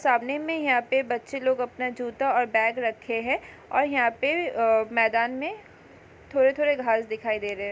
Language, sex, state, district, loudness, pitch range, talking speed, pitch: Hindi, female, Chhattisgarh, Raigarh, -25 LUFS, 230-270 Hz, 185 wpm, 245 Hz